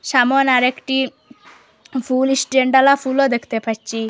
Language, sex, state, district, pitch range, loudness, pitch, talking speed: Bengali, female, Assam, Hailakandi, 245-270 Hz, -17 LUFS, 260 Hz, 100 wpm